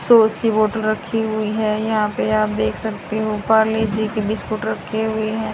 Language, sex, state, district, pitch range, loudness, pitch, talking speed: Hindi, female, Haryana, Jhajjar, 215-220 Hz, -19 LUFS, 215 Hz, 205 wpm